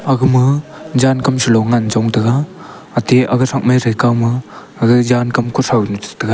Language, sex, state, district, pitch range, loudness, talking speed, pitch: Wancho, male, Arunachal Pradesh, Longding, 115-130 Hz, -14 LUFS, 200 wpm, 125 Hz